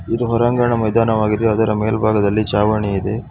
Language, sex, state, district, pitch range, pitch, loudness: Kannada, male, Karnataka, Bangalore, 105-115 Hz, 110 Hz, -17 LUFS